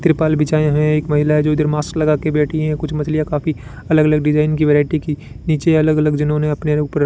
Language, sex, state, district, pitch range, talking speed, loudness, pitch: Hindi, male, Rajasthan, Bikaner, 150-155 Hz, 230 wpm, -16 LUFS, 150 Hz